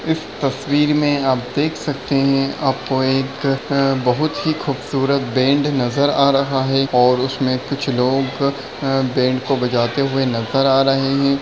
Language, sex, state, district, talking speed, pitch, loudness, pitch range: Hindi, male, Bihar, Darbhanga, 150 wpm, 135 Hz, -18 LUFS, 130-140 Hz